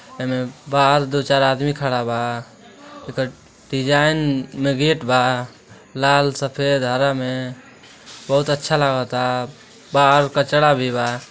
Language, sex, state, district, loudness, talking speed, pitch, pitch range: Bhojpuri, male, Uttar Pradesh, Deoria, -19 LUFS, 120 wpm, 135 Hz, 125-140 Hz